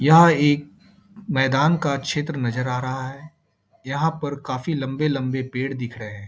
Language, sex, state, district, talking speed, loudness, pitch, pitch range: Hindi, male, Bihar, Bhagalpur, 160 wpm, -22 LUFS, 140 Hz, 130-155 Hz